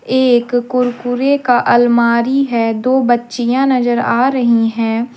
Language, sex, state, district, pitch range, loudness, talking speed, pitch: Hindi, female, Jharkhand, Deoghar, 235-255 Hz, -13 LUFS, 140 wpm, 245 Hz